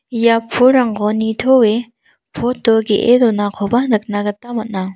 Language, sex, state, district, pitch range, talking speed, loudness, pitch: Garo, female, Meghalaya, South Garo Hills, 210-245 Hz, 120 wpm, -15 LUFS, 225 Hz